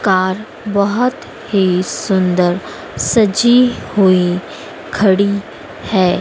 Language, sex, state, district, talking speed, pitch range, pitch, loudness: Hindi, female, Madhya Pradesh, Dhar, 75 wpm, 185-215 Hz, 195 Hz, -15 LUFS